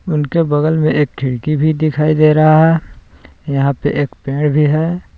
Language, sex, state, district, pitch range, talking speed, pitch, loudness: Hindi, male, Jharkhand, Palamu, 140-155 Hz, 185 wpm, 150 Hz, -14 LUFS